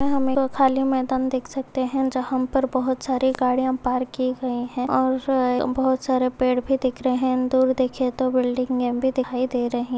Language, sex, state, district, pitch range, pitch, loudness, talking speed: Hindi, female, Bihar, Supaul, 255-265 Hz, 260 Hz, -22 LUFS, 190 wpm